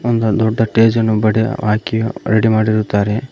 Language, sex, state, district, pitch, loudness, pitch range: Kannada, male, Karnataka, Koppal, 110 Hz, -15 LUFS, 110-115 Hz